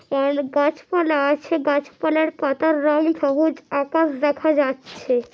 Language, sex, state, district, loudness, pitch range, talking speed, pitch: Bengali, female, West Bengal, North 24 Parganas, -20 LUFS, 280-315 Hz, 125 wpm, 295 Hz